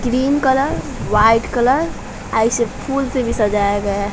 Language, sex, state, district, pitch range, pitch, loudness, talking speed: Hindi, female, Bihar, West Champaran, 210-265 Hz, 240 Hz, -17 LUFS, 160 wpm